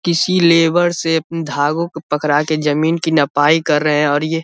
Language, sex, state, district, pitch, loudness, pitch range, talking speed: Hindi, male, Bihar, Vaishali, 160 Hz, -15 LUFS, 150-165 Hz, 230 wpm